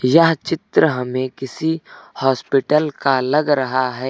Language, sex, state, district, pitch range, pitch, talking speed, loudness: Hindi, male, Uttar Pradesh, Lucknow, 130-155 Hz, 135 Hz, 130 wpm, -18 LUFS